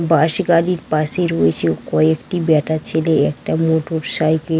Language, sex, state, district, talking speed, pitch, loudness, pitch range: Bengali, female, West Bengal, Dakshin Dinajpur, 145 wpm, 160 Hz, -17 LUFS, 150-165 Hz